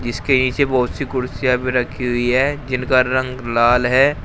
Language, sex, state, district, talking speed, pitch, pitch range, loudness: Hindi, male, Uttar Pradesh, Shamli, 185 wpm, 125 Hz, 125-130 Hz, -17 LUFS